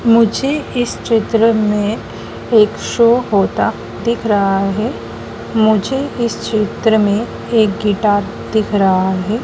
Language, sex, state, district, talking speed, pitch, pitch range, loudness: Hindi, female, Madhya Pradesh, Dhar, 120 wpm, 220 Hz, 205-230 Hz, -15 LUFS